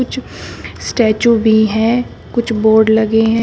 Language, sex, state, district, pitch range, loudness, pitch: Hindi, female, Uttar Pradesh, Shamli, 220-230 Hz, -13 LUFS, 225 Hz